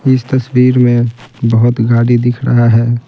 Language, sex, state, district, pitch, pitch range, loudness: Hindi, male, Bihar, Patna, 120 Hz, 120-125 Hz, -11 LUFS